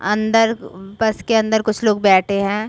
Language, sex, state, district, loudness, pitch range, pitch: Hindi, female, Chhattisgarh, Raigarh, -17 LUFS, 200-220 Hz, 215 Hz